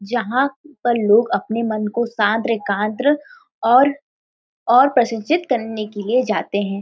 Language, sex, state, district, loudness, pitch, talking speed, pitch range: Hindi, female, Uttar Pradesh, Varanasi, -18 LUFS, 235 Hz, 165 wpm, 215-265 Hz